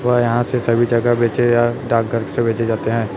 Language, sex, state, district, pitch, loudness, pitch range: Hindi, male, Chhattisgarh, Raipur, 120 Hz, -17 LUFS, 115-120 Hz